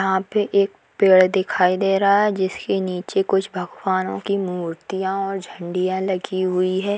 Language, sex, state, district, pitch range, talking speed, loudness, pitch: Hindi, female, Bihar, Sitamarhi, 185-195 Hz, 165 wpm, -20 LUFS, 190 Hz